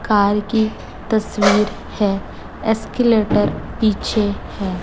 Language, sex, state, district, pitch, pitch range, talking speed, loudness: Hindi, female, Chhattisgarh, Raipur, 210 Hz, 200-220 Hz, 85 wpm, -18 LUFS